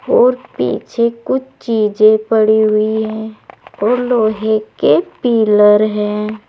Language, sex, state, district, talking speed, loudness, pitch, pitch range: Hindi, female, Uttar Pradesh, Saharanpur, 110 wpm, -14 LUFS, 220 Hz, 215-235 Hz